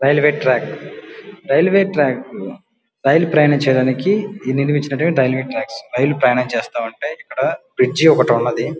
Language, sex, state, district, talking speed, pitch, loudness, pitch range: Telugu, male, Andhra Pradesh, Guntur, 125 wpm, 145 Hz, -16 LUFS, 130-170 Hz